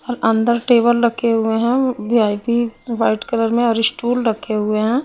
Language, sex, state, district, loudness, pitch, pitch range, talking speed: Hindi, female, Chhattisgarh, Raipur, -17 LUFS, 230 Hz, 225-240 Hz, 180 wpm